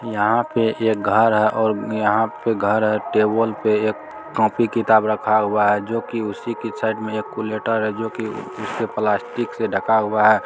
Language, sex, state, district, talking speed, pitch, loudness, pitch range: Maithili, male, Bihar, Supaul, 200 wpm, 110 Hz, -20 LUFS, 105-115 Hz